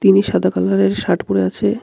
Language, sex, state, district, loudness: Bengali, male, West Bengal, Cooch Behar, -16 LUFS